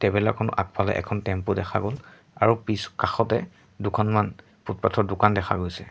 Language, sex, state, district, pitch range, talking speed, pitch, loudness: Assamese, male, Assam, Sonitpur, 100-110 Hz, 165 wpm, 105 Hz, -25 LUFS